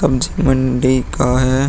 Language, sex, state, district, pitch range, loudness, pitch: Hindi, male, Uttar Pradesh, Muzaffarnagar, 130-135 Hz, -16 LUFS, 130 Hz